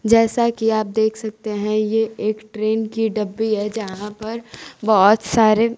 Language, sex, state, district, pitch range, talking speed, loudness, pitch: Hindi, female, Bihar, Kaimur, 215-225 Hz, 165 wpm, -19 LUFS, 220 Hz